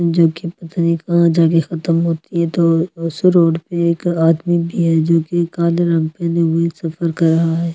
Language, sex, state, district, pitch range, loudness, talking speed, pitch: Hindi, female, Delhi, New Delhi, 165-170 Hz, -16 LUFS, 215 wpm, 170 Hz